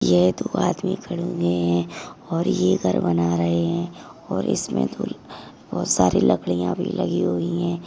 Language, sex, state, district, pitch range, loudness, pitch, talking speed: Hindi, female, Maharashtra, Aurangabad, 85-90 Hz, -22 LUFS, 85 Hz, 170 wpm